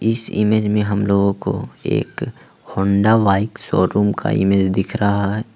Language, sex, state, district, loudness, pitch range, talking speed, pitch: Hindi, male, Jharkhand, Ranchi, -18 LUFS, 100-110 Hz, 150 wpm, 100 Hz